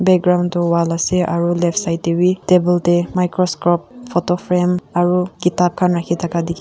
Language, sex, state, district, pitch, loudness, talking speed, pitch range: Nagamese, female, Nagaland, Kohima, 175 Hz, -17 LUFS, 180 wpm, 170-180 Hz